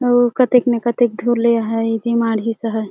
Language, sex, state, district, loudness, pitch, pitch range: Chhattisgarhi, female, Chhattisgarh, Jashpur, -17 LUFS, 235 Hz, 225-240 Hz